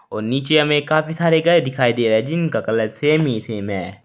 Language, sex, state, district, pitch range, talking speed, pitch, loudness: Hindi, male, Uttar Pradesh, Saharanpur, 110-155 Hz, 220 wpm, 135 Hz, -18 LUFS